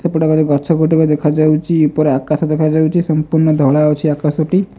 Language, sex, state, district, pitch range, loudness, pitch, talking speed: Odia, female, Odisha, Malkangiri, 150-160 Hz, -14 LUFS, 155 Hz, 190 wpm